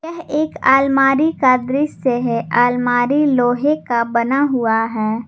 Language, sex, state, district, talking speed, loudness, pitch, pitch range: Hindi, female, Jharkhand, Garhwa, 135 wpm, -16 LUFS, 255 Hz, 235-285 Hz